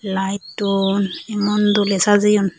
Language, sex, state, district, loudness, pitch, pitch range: Chakma, female, Tripura, Unakoti, -18 LUFS, 200 Hz, 195-205 Hz